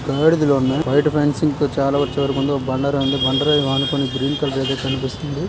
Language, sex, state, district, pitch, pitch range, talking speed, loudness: Telugu, male, Andhra Pradesh, Visakhapatnam, 140 Hz, 135-145 Hz, 210 wpm, -19 LUFS